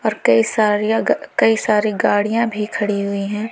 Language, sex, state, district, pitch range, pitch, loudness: Hindi, female, Uttar Pradesh, Lalitpur, 205-220 Hz, 210 Hz, -17 LUFS